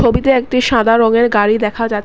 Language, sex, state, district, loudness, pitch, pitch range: Bengali, female, Assam, Kamrup Metropolitan, -13 LUFS, 230 Hz, 220-240 Hz